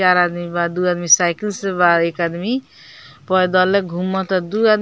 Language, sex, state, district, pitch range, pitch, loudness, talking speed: Bhojpuri, female, Bihar, Muzaffarpur, 175-190 Hz, 180 Hz, -17 LUFS, 200 wpm